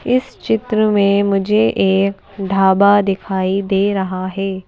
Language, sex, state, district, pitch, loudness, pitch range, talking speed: Hindi, female, Madhya Pradesh, Bhopal, 195 Hz, -16 LUFS, 190-205 Hz, 130 wpm